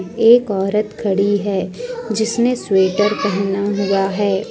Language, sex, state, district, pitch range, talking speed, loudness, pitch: Hindi, female, Jharkhand, Deoghar, 195-220 Hz, 120 wpm, -17 LUFS, 205 Hz